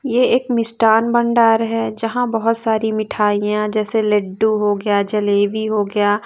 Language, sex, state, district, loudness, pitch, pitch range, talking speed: Hindi, female, Bihar, West Champaran, -17 LUFS, 220 Hz, 210-230 Hz, 155 wpm